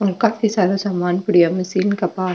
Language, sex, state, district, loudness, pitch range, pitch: Marwari, female, Rajasthan, Nagaur, -18 LUFS, 180-200 Hz, 190 Hz